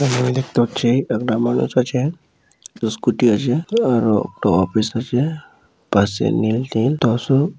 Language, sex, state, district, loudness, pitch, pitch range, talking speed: Bengali, male, West Bengal, Malda, -18 LUFS, 120 Hz, 110-135 Hz, 110 wpm